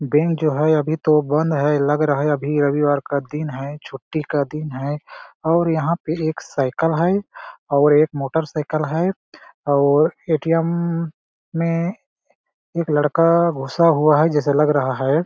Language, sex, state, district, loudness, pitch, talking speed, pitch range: Hindi, male, Chhattisgarh, Balrampur, -19 LUFS, 150 Hz, 165 wpm, 145-165 Hz